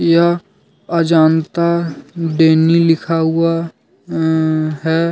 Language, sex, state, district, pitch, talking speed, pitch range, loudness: Hindi, male, Jharkhand, Deoghar, 165 Hz, 80 wpm, 160-170 Hz, -15 LUFS